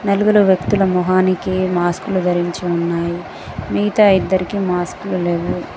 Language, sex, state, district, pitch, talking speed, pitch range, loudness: Telugu, female, Telangana, Mahabubabad, 185 Hz, 105 wpm, 175-190 Hz, -17 LUFS